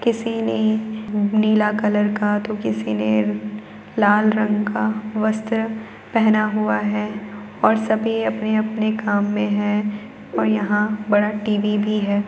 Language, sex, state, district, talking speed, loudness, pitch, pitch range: Hindi, female, Bihar, Gaya, 135 wpm, -20 LUFS, 210 Hz, 205-215 Hz